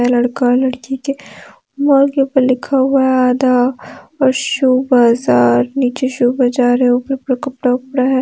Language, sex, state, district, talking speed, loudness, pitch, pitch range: Hindi, female, Jharkhand, Deoghar, 130 wpm, -14 LUFS, 255 Hz, 245-270 Hz